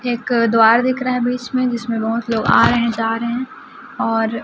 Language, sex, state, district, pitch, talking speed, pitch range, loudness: Hindi, female, Chhattisgarh, Raipur, 235 Hz, 230 wpm, 225-250 Hz, -17 LUFS